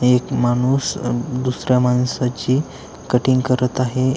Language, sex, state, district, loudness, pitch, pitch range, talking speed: Marathi, male, Maharashtra, Aurangabad, -19 LUFS, 125 Hz, 125-130 Hz, 100 wpm